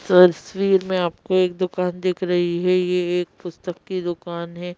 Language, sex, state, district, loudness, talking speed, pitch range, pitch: Hindi, female, Madhya Pradesh, Bhopal, -21 LUFS, 175 wpm, 175-185 Hz, 180 Hz